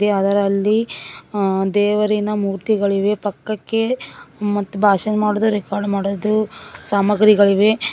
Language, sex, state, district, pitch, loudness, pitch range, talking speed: Kannada, female, Karnataka, Koppal, 205 Hz, -18 LUFS, 200-215 Hz, 90 wpm